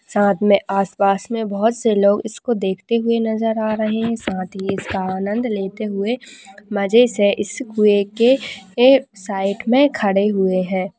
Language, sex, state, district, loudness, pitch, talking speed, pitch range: Hindi, female, Chhattisgarh, Raigarh, -18 LUFS, 210 Hz, 165 wpm, 195-230 Hz